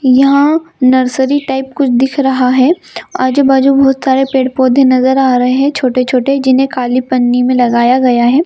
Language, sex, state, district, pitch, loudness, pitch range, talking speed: Hindi, female, Bihar, Purnia, 265 Hz, -10 LUFS, 255-275 Hz, 155 wpm